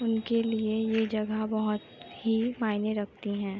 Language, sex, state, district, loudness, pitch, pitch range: Hindi, female, Uttar Pradesh, Etah, -30 LUFS, 220 Hz, 210-225 Hz